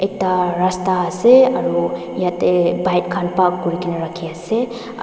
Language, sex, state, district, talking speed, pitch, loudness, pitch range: Nagamese, female, Nagaland, Dimapur, 145 wpm, 180 Hz, -17 LUFS, 175-185 Hz